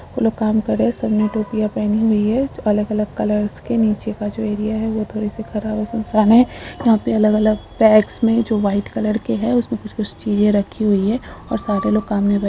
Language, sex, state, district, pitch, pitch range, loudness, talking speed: Hindi, female, Jharkhand, Sahebganj, 215 Hz, 210-225 Hz, -18 LUFS, 245 wpm